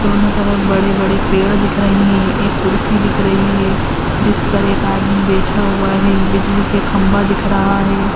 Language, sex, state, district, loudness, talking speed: Hindi, female, Uttar Pradesh, Hamirpur, -14 LUFS, 160 wpm